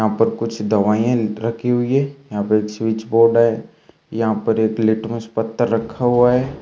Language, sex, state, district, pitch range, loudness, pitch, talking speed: Hindi, male, Bihar, Kaimur, 110-120 Hz, -18 LUFS, 115 Hz, 190 wpm